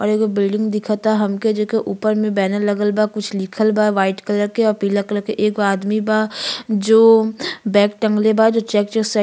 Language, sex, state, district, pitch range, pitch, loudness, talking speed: Bhojpuri, female, Uttar Pradesh, Gorakhpur, 205-220 Hz, 210 Hz, -17 LUFS, 220 wpm